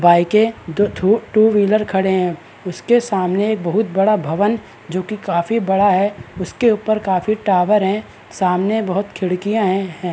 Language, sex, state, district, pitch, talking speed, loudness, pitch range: Hindi, male, Chhattisgarh, Balrampur, 200 Hz, 150 wpm, -17 LUFS, 185-215 Hz